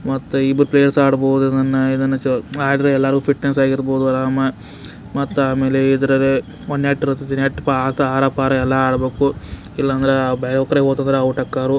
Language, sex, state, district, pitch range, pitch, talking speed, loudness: Kannada, male, Karnataka, Belgaum, 130-140 Hz, 135 Hz, 165 wpm, -17 LUFS